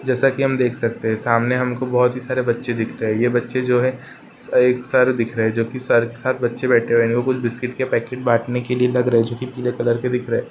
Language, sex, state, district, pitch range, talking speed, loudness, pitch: Hindi, male, Uttar Pradesh, Ghazipur, 115-125 Hz, 290 wpm, -19 LUFS, 125 Hz